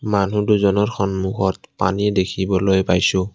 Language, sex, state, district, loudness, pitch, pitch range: Assamese, male, Assam, Kamrup Metropolitan, -19 LUFS, 95 Hz, 95-100 Hz